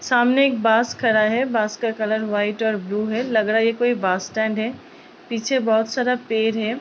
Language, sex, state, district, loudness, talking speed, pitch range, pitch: Hindi, female, Uttar Pradesh, Ghazipur, -20 LUFS, 220 wpm, 220-245 Hz, 225 Hz